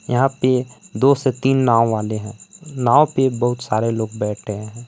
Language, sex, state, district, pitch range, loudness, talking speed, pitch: Hindi, male, Jharkhand, Palamu, 110-135 Hz, -18 LUFS, 185 wpm, 120 Hz